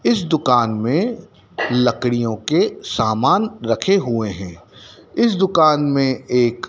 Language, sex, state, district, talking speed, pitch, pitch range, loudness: Hindi, male, Madhya Pradesh, Dhar, 115 wpm, 125 Hz, 110-155 Hz, -18 LUFS